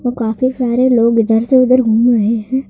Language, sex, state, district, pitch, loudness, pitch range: Hindi, male, Madhya Pradesh, Bhopal, 240 Hz, -13 LUFS, 225-255 Hz